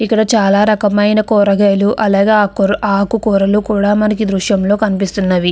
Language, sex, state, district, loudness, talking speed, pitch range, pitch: Telugu, female, Andhra Pradesh, Krishna, -13 LUFS, 140 wpm, 195-215 Hz, 205 Hz